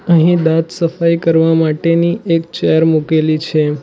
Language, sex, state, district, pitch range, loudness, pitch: Gujarati, male, Gujarat, Valsad, 160-170 Hz, -13 LUFS, 165 Hz